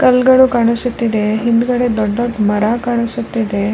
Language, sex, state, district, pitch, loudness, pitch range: Kannada, female, Karnataka, Raichur, 235 Hz, -14 LUFS, 215-245 Hz